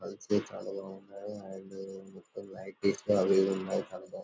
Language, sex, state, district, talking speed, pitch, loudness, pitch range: Telugu, male, Telangana, Karimnagar, 115 wpm, 95 Hz, -33 LUFS, 95-100 Hz